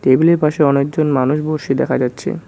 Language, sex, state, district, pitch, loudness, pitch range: Bengali, male, West Bengal, Cooch Behar, 150 Hz, -16 LUFS, 140-155 Hz